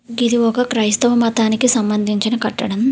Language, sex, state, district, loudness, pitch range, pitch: Telugu, female, Telangana, Hyderabad, -16 LUFS, 215-240 Hz, 230 Hz